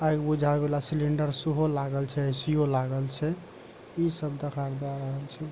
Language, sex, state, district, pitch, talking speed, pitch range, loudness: Maithili, male, Bihar, Supaul, 145 Hz, 195 wpm, 140-155 Hz, -29 LUFS